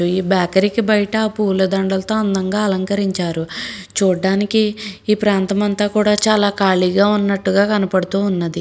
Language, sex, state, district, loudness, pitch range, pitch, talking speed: Telugu, female, Andhra Pradesh, Srikakulam, -17 LUFS, 190-210 Hz, 200 Hz, 120 wpm